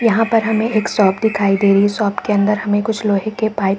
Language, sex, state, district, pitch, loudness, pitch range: Hindi, female, Chhattisgarh, Bilaspur, 210 Hz, -16 LUFS, 200-220 Hz